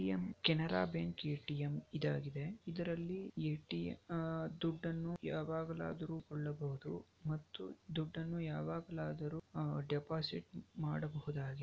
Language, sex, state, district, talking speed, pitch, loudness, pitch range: Kannada, male, Karnataka, Shimoga, 105 wpm, 150 Hz, -42 LUFS, 135-165 Hz